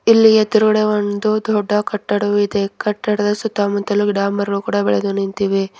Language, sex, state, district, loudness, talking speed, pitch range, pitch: Kannada, female, Karnataka, Bidar, -17 LUFS, 145 wpm, 200-215 Hz, 205 Hz